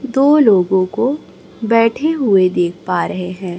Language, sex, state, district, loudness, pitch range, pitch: Hindi, female, Chhattisgarh, Raipur, -15 LUFS, 180-260 Hz, 200 Hz